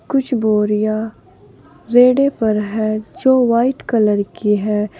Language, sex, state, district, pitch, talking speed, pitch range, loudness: Hindi, female, Uttar Pradesh, Saharanpur, 215 Hz, 120 wpm, 210-245 Hz, -16 LUFS